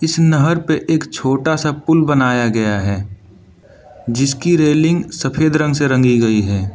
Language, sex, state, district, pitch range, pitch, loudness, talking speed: Hindi, male, Arunachal Pradesh, Lower Dibang Valley, 115-160 Hz, 140 Hz, -15 LUFS, 150 wpm